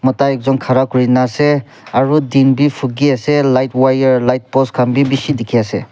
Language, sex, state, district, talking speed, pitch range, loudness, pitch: Nagamese, male, Nagaland, Kohima, 195 wpm, 125-140 Hz, -13 LUFS, 130 Hz